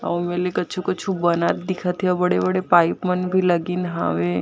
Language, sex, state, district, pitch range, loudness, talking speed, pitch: Chhattisgarhi, female, Chhattisgarh, Jashpur, 175-185 Hz, -21 LUFS, 205 wpm, 180 Hz